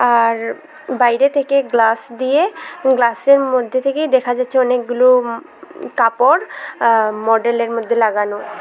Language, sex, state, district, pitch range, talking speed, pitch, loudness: Bengali, female, Tripura, West Tripura, 230-265 Hz, 110 wpm, 245 Hz, -15 LUFS